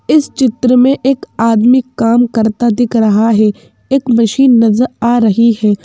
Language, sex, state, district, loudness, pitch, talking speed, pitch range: Hindi, female, Madhya Pradesh, Bhopal, -11 LUFS, 235 Hz, 165 wpm, 225-255 Hz